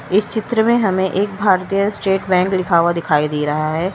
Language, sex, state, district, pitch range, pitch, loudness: Hindi, female, Uttar Pradesh, Lalitpur, 170-200 Hz, 190 Hz, -17 LUFS